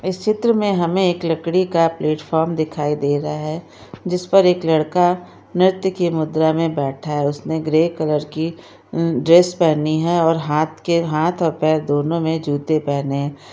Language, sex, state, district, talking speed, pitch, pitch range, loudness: Hindi, male, Chhattisgarh, Kabirdham, 185 wpm, 160 Hz, 155-175 Hz, -18 LUFS